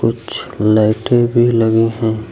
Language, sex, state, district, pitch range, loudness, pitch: Hindi, male, Uttar Pradesh, Lucknow, 110-120 Hz, -14 LUFS, 115 Hz